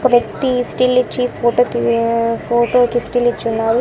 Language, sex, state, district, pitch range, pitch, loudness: Telugu, female, Andhra Pradesh, Annamaya, 230-245 Hz, 240 Hz, -16 LUFS